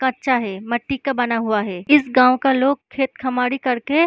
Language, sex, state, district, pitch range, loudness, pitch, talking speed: Hindi, female, Uttar Pradesh, Gorakhpur, 240-270 Hz, -19 LUFS, 255 Hz, 220 wpm